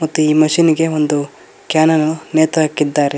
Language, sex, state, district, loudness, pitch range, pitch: Kannada, male, Karnataka, Koppal, -14 LUFS, 150-160 Hz, 155 Hz